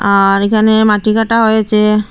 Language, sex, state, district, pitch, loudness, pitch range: Bengali, female, Assam, Hailakandi, 215 Hz, -11 LUFS, 210-220 Hz